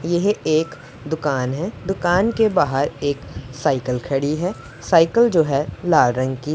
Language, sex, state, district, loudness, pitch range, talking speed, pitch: Hindi, female, Punjab, Pathankot, -20 LUFS, 135-175 Hz, 155 wpm, 155 Hz